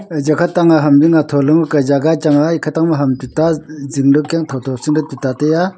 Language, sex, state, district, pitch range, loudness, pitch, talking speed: Wancho, male, Arunachal Pradesh, Longding, 140-160 Hz, -14 LUFS, 155 Hz, 280 wpm